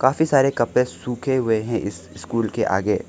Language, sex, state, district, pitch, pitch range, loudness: Hindi, male, Arunachal Pradesh, Lower Dibang Valley, 115 Hz, 105-130 Hz, -21 LUFS